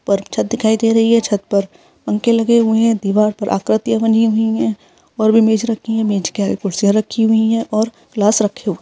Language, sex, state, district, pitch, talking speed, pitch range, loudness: Hindi, female, Chhattisgarh, Rajnandgaon, 220 Hz, 240 wpm, 200-225 Hz, -15 LUFS